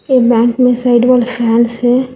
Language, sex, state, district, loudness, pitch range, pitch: Hindi, female, Telangana, Hyderabad, -11 LUFS, 240-250 Hz, 245 Hz